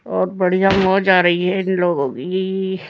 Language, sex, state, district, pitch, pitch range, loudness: Hindi, female, Uttar Pradesh, Jyotiba Phule Nagar, 185 Hz, 175-190 Hz, -17 LUFS